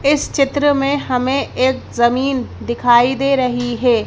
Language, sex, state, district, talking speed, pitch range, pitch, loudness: Hindi, female, Madhya Pradesh, Bhopal, 150 wpm, 245-275 Hz, 260 Hz, -16 LUFS